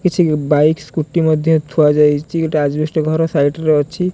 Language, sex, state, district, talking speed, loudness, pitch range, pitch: Odia, male, Odisha, Khordha, 175 wpm, -15 LUFS, 150-160 Hz, 155 Hz